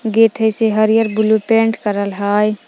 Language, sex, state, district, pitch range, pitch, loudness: Magahi, female, Jharkhand, Palamu, 210-225 Hz, 220 Hz, -15 LUFS